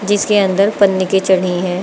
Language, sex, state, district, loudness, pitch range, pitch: Hindi, female, Uttar Pradesh, Lucknow, -14 LUFS, 185-200 Hz, 195 Hz